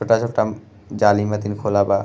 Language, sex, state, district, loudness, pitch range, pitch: Bhojpuri, male, Uttar Pradesh, Gorakhpur, -19 LUFS, 105-110 Hz, 105 Hz